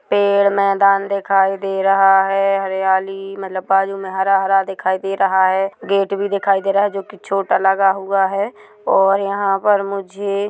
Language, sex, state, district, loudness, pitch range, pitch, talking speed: Hindi, male, Chhattisgarh, Rajnandgaon, -17 LUFS, 195-200 Hz, 195 Hz, 170 wpm